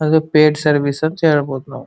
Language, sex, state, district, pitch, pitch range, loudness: Kannada, male, Karnataka, Dharwad, 150 Hz, 140-155 Hz, -15 LUFS